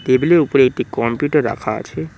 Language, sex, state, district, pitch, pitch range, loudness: Bengali, male, West Bengal, Cooch Behar, 130 Hz, 115-150 Hz, -16 LUFS